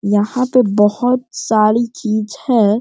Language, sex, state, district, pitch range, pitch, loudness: Hindi, male, Bihar, Sitamarhi, 210-250 Hz, 220 Hz, -15 LUFS